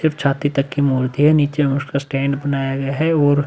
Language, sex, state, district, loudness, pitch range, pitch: Hindi, male, Uttar Pradesh, Budaun, -18 LUFS, 135-145 Hz, 140 Hz